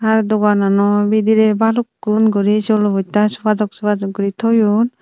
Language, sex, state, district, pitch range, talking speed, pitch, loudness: Chakma, female, Tripura, Unakoti, 205-220 Hz, 145 wpm, 215 Hz, -15 LUFS